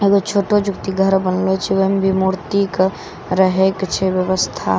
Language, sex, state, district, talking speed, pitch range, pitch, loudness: Maithili, female, Bihar, Katihar, 185 wpm, 185-195 Hz, 190 Hz, -17 LUFS